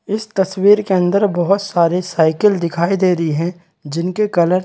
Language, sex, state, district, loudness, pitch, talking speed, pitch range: Hindi, male, Chhattisgarh, Raigarh, -16 LUFS, 180 Hz, 180 wpm, 170-195 Hz